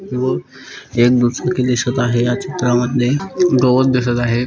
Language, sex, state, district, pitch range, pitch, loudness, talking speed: Marathi, male, Maharashtra, Pune, 120-130 Hz, 125 Hz, -16 LUFS, 145 wpm